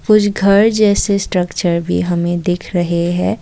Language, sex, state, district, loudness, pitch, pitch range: Hindi, female, Assam, Kamrup Metropolitan, -15 LUFS, 180 Hz, 175-205 Hz